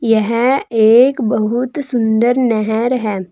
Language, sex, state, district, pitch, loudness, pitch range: Hindi, female, Uttar Pradesh, Saharanpur, 230 Hz, -14 LUFS, 220-250 Hz